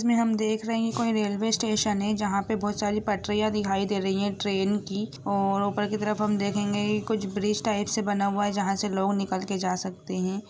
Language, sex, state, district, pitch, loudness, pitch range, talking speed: Hindi, female, Bihar, Jamui, 205 Hz, -27 LUFS, 200-215 Hz, 225 wpm